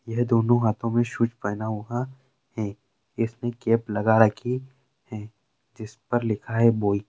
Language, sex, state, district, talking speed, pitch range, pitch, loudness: Hindi, male, Uttarakhand, Uttarkashi, 150 wpm, 110-120 Hz, 115 Hz, -24 LUFS